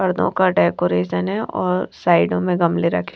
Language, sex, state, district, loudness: Hindi, female, Punjab, Kapurthala, -19 LUFS